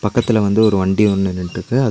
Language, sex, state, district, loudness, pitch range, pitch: Tamil, male, Tamil Nadu, Nilgiris, -16 LUFS, 95-110 Hz, 105 Hz